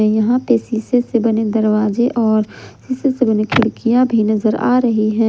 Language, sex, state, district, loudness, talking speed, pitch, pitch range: Hindi, female, Jharkhand, Ranchi, -16 LUFS, 180 wpm, 225 Hz, 215-245 Hz